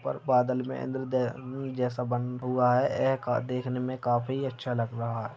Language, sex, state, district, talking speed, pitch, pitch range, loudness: Hindi, male, Uttar Pradesh, Deoria, 180 wpm, 125 Hz, 125-130 Hz, -29 LUFS